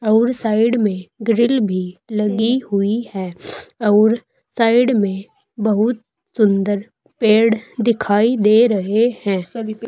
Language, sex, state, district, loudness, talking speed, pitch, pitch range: Hindi, female, Uttar Pradesh, Saharanpur, -17 LUFS, 110 wpm, 220 Hz, 205-230 Hz